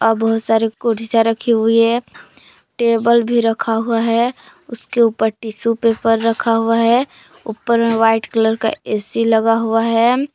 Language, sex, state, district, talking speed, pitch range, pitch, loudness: Hindi, female, Jharkhand, Palamu, 155 wpm, 225-235 Hz, 230 Hz, -16 LUFS